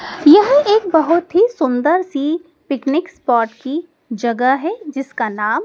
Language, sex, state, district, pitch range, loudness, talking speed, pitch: Hindi, female, Madhya Pradesh, Dhar, 260-340 Hz, -16 LUFS, 140 wpm, 305 Hz